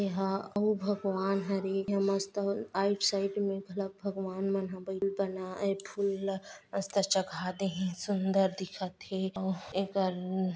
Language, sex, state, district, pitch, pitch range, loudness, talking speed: Chhattisgarhi, female, Chhattisgarh, Bastar, 195 Hz, 190-200 Hz, -33 LUFS, 135 wpm